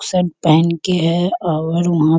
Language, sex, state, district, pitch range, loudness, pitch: Hindi, female, Bihar, Kishanganj, 160-180 Hz, -16 LUFS, 170 Hz